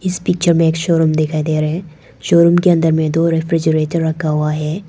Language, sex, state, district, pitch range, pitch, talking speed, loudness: Hindi, female, Arunachal Pradesh, Papum Pare, 155-170 Hz, 160 Hz, 210 wpm, -15 LUFS